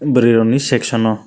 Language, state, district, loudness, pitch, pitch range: Kokborok, Tripura, West Tripura, -14 LUFS, 120 Hz, 115-125 Hz